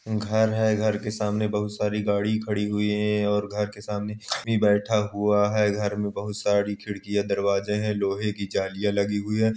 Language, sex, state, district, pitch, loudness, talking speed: Hindi, male, Uttar Pradesh, Jalaun, 105 Hz, -25 LUFS, 200 wpm